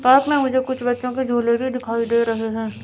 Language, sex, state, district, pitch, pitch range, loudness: Hindi, female, Chandigarh, Chandigarh, 245 Hz, 230-260 Hz, -20 LUFS